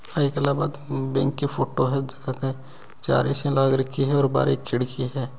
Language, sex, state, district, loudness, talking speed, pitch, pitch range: Hindi, male, Rajasthan, Nagaur, -24 LUFS, 200 wpm, 135 Hz, 130-140 Hz